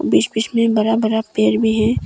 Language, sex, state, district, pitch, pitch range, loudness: Hindi, female, Arunachal Pradesh, Longding, 220 Hz, 220-225 Hz, -17 LUFS